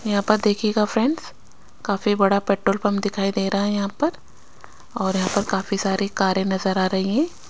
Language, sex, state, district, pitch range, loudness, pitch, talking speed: Hindi, female, Chandigarh, Chandigarh, 195-210 Hz, -22 LUFS, 200 Hz, 190 wpm